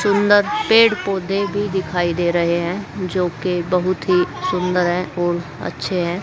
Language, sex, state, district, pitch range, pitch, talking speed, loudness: Hindi, female, Haryana, Jhajjar, 175-200 Hz, 180 Hz, 155 wpm, -19 LUFS